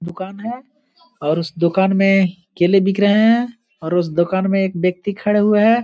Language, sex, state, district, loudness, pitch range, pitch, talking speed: Hindi, male, Bihar, Gaya, -17 LUFS, 175-215 Hz, 195 Hz, 205 wpm